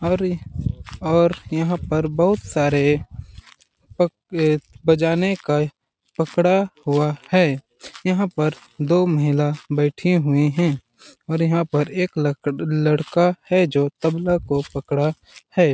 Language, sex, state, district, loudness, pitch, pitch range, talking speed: Hindi, male, Chhattisgarh, Balrampur, -20 LUFS, 160 Hz, 145-175 Hz, 120 wpm